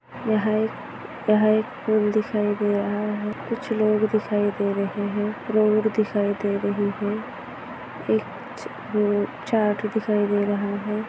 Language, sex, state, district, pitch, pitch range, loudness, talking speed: Hindi, female, Maharashtra, Aurangabad, 210 Hz, 205-215 Hz, -23 LUFS, 145 wpm